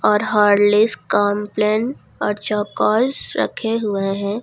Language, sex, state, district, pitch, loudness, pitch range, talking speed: Hindi, female, Jharkhand, Ranchi, 210 Hz, -18 LUFS, 205-220 Hz, 110 wpm